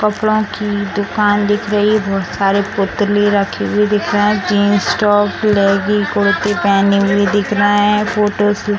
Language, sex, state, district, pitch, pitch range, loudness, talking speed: Hindi, female, Bihar, Samastipur, 205 Hz, 200-210 Hz, -14 LUFS, 170 wpm